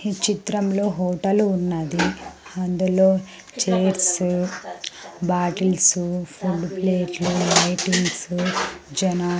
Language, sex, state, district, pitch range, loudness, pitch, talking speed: Telugu, female, Andhra Pradesh, Sri Satya Sai, 180-190 Hz, -21 LUFS, 185 Hz, 75 wpm